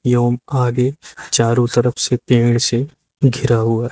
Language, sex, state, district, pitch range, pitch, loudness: Hindi, male, Uttar Pradesh, Lucknow, 120-130 Hz, 120 Hz, -16 LUFS